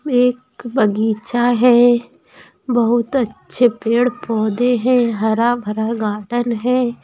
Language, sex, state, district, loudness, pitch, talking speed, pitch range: Hindi, female, Bihar, East Champaran, -17 LUFS, 240 Hz, 95 wpm, 225-245 Hz